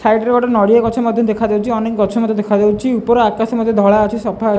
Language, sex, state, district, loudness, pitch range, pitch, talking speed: Odia, male, Odisha, Khordha, -14 LUFS, 210-230 Hz, 225 Hz, 220 wpm